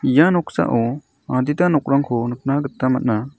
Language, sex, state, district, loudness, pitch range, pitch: Garo, male, Meghalaya, South Garo Hills, -19 LUFS, 125-145 Hz, 135 Hz